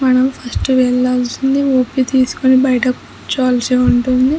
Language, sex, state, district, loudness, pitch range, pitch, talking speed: Telugu, female, Andhra Pradesh, Chittoor, -14 LUFS, 250-260 Hz, 255 Hz, 110 wpm